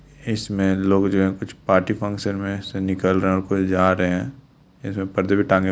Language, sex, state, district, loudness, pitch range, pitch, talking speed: Hindi, male, Bihar, Lakhisarai, -21 LUFS, 95-105 Hz, 95 Hz, 230 wpm